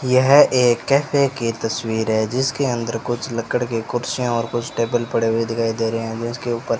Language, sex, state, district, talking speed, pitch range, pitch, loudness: Hindi, male, Rajasthan, Bikaner, 210 wpm, 115-125 Hz, 120 Hz, -20 LUFS